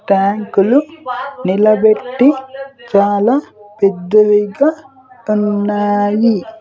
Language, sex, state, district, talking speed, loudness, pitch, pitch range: Telugu, male, Andhra Pradesh, Sri Satya Sai, 45 wpm, -14 LUFS, 215 Hz, 205-260 Hz